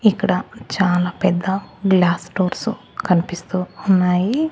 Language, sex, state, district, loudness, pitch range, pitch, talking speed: Telugu, male, Andhra Pradesh, Annamaya, -19 LUFS, 180-195 Hz, 185 Hz, 95 wpm